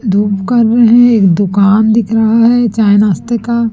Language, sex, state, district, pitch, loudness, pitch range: Hindi, female, Chhattisgarh, Raipur, 225 Hz, -10 LUFS, 200-235 Hz